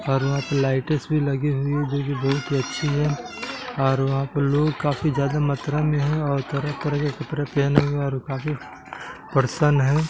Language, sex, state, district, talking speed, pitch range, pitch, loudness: Hindi, male, Bihar, Gaya, 200 wpm, 135-150 Hz, 140 Hz, -23 LUFS